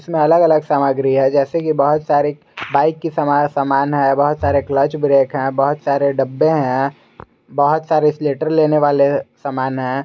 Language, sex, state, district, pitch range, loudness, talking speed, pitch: Hindi, male, Jharkhand, Garhwa, 135-150 Hz, -16 LUFS, 165 wpm, 145 Hz